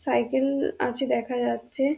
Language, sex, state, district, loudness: Bengali, female, West Bengal, Dakshin Dinajpur, -26 LUFS